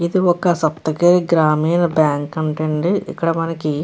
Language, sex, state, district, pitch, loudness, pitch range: Telugu, female, Andhra Pradesh, Krishna, 165 Hz, -17 LUFS, 155-175 Hz